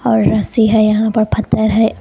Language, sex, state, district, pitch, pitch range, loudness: Hindi, female, Karnataka, Koppal, 220 Hz, 215-225 Hz, -13 LUFS